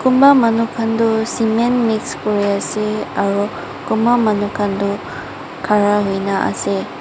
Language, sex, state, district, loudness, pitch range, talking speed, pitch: Nagamese, female, Mizoram, Aizawl, -17 LUFS, 200-230 Hz, 135 wpm, 215 Hz